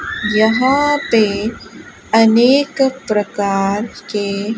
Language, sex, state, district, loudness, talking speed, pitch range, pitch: Hindi, male, Rajasthan, Bikaner, -15 LUFS, 65 wpm, 205-260 Hz, 220 Hz